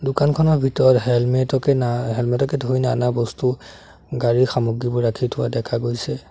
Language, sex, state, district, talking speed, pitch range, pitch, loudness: Assamese, male, Assam, Sonitpur, 160 wpm, 120-135 Hz, 125 Hz, -20 LUFS